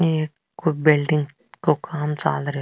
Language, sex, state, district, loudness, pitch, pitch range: Marwari, female, Rajasthan, Nagaur, -22 LUFS, 150 Hz, 145-155 Hz